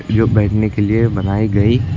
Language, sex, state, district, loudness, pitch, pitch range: Hindi, male, Uttar Pradesh, Lucknow, -15 LUFS, 110 Hz, 105-115 Hz